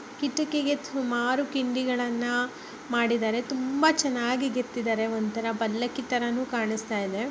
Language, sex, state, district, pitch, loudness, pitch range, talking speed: Kannada, female, Karnataka, Bellary, 245 Hz, -27 LUFS, 235-265 Hz, 100 wpm